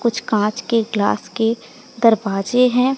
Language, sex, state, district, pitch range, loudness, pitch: Hindi, female, Odisha, Sambalpur, 215-250 Hz, -18 LUFS, 230 Hz